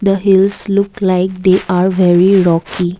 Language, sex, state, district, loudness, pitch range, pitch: English, female, Assam, Kamrup Metropolitan, -12 LUFS, 180-195 Hz, 190 Hz